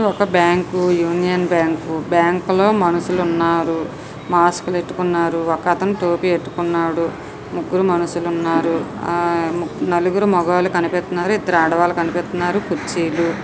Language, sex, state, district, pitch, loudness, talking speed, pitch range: Telugu, female, Andhra Pradesh, Visakhapatnam, 175 Hz, -18 LUFS, 105 wpm, 170-180 Hz